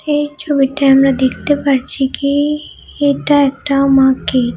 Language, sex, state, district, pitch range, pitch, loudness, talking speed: Bengali, female, West Bengal, Malda, 270-290 Hz, 280 Hz, -14 LUFS, 120 wpm